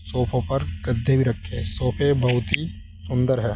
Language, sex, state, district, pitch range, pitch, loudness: Hindi, male, Uttar Pradesh, Saharanpur, 95-125 Hz, 120 Hz, -23 LUFS